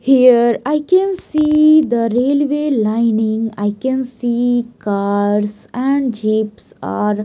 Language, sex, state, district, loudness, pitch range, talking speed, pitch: English, female, Maharashtra, Mumbai Suburban, -15 LUFS, 215-280 Hz, 125 wpm, 240 Hz